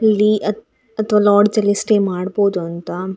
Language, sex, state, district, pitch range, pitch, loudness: Kannada, female, Karnataka, Dakshina Kannada, 195-215 Hz, 205 Hz, -16 LUFS